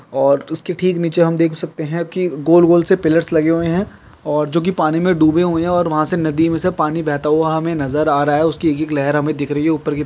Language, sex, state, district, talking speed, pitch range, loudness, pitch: Hindi, male, Andhra Pradesh, Guntur, 285 wpm, 155-170 Hz, -16 LUFS, 160 Hz